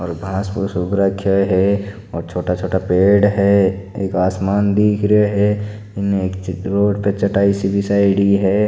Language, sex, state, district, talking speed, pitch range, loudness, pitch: Marwari, male, Rajasthan, Nagaur, 160 wpm, 95-100 Hz, -17 LUFS, 100 Hz